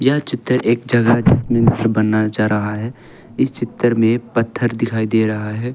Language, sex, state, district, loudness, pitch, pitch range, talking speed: Hindi, male, Arunachal Pradesh, Longding, -17 LUFS, 115 Hz, 110-120 Hz, 190 wpm